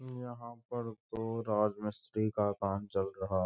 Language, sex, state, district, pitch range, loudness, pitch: Hindi, male, Uttar Pradesh, Jyotiba Phule Nagar, 100-115 Hz, -36 LUFS, 110 Hz